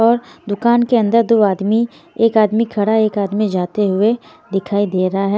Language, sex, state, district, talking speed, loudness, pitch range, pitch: Hindi, female, Haryana, Jhajjar, 190 wpm, -16 LUFS, 205-230 Hz, 215 Hz